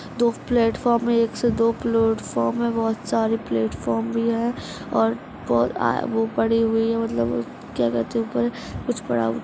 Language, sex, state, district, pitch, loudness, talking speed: Hindi, female, Maharashtra, Solapur, 225 Hz, -23 LUFS, 160 wpm